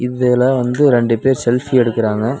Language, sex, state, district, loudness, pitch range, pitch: Tamil, male, Tamil Nadu, Nilgiris, -15 LUFS, 120-130 Hz, 125 Hz